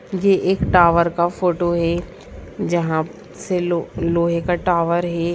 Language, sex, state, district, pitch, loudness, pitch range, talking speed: Hindi, female, Bihar, Sitamarhi, 175 Hz, -19 LUFS, 170-180 Hz, 145 wpm